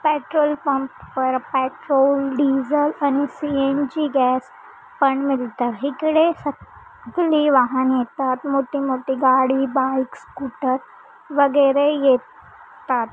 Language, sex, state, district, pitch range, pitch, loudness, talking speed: Marathi, female, Maharashtra, Chandrapur, 260-290 Hz, 275 Hz, -20 LUFS, 110 wpm